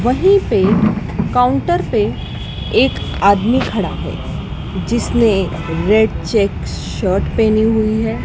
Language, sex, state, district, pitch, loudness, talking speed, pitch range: Hindi, female, Madhya Pradesh, Dhar, 220 Hz, -16 LUFS, 110 wpm, 200-235 Hz